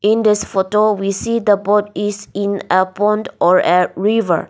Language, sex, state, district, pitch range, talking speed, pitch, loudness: English, female, Nagaland, Dimapur, 190-210 Hz, 200 wpm, 205 Hz, -16 LUFS